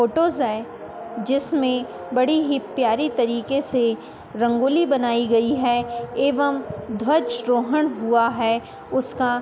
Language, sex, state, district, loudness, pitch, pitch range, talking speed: Hindi, female, Uttar Pradesh, Muzaffarnagar, -21 LUFS, 245 Hz, 235-275 Hz, 115 wpm